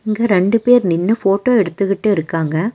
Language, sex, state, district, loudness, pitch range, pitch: Tamil, female, Tamil Nadu, Nilgiris, -15 LUFS, 180-225 Hz, 205 Hz